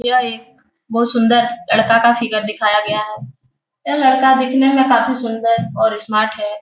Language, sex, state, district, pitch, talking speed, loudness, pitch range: Hindi, female, Bihar, Jahanabad, 230 Hz, 170 wpm, -15 LUFS, 215-245 Hz